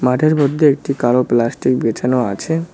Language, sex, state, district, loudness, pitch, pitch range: Bengali, male, West Bengal, Cooch Behar, -16 LUFS, 135 Hz, 125-155 Hz